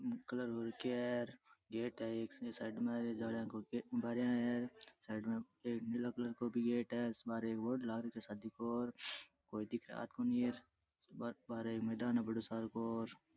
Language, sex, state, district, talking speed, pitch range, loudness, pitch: Rajasthani, male, Rajasthan, Churu, 190 wpm, 115-120 Hz, -42 LUFS, 120 Hz